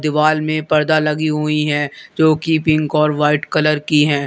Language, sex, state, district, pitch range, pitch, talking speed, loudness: Hindi, male, Uttar Pradesh, Lalitpur, 150-155 Hz, 150 Hz, 185 wpm, -16 LUFS